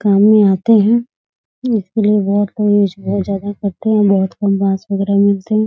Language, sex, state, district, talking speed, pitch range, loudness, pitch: Hindi, female, Bihar, Muzaffarpur, 180 wpm, 195-215 Hz, -14 LUFS, 205 Hz